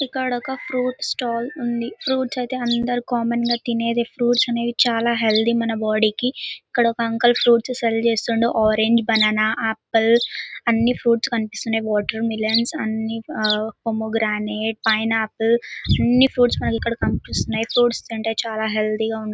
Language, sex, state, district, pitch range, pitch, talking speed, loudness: Telugu, female, Andhra Pradesh, Anantapur, 220-240 Hz, 230 Hz, 145 wpm, -20 LUFS